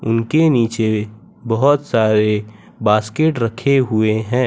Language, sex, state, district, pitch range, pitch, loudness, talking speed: Hindi, male, Gujarat, Valsad, 110-130 Hz, 115 Hz, -16 LUFS, 105 wpm